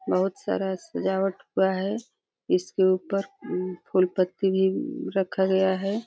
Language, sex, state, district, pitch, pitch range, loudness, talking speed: Hindi, female, Uttar Pradesh, Deoria, 190 Hz, 185-195 Hz, -26 LUFS, 150 wpm